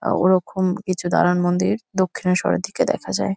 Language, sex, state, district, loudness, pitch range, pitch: Bengali, female, West Bengal, Kolkata, -20 LUFS, 175-185 Hz, 180 Hz